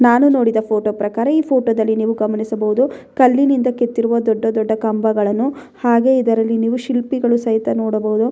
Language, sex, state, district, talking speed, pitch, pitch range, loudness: Kannada, female, Karnataka, Bellary, 130 wpm, 230 Hz, 220-255 Hz, -16 LUFS